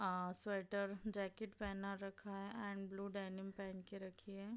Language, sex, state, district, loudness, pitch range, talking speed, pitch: Hindi, female, Bihar, Madhepura, -46 LUFS, 195-200 Hz, 170 wpm, 195 Hz